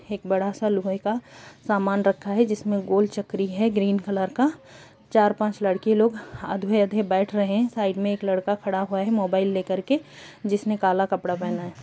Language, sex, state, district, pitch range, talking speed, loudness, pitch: Hindi, female, Chhattisgarh, Kabirdham, 190-210 Hz, 190 wpm, -24 LUFS, 200 Hz